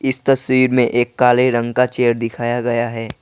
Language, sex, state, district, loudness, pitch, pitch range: Hindi, male, Assam, Kamrup Metropolitan, -16 LUFS, 120 Hz, 120-125 Hz